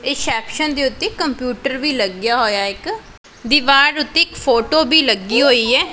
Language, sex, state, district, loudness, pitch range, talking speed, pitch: Punjabi, female, Punjab, Pathankot, -15 LUFS, 240-310 Hz, 170 wpm, 275 Hz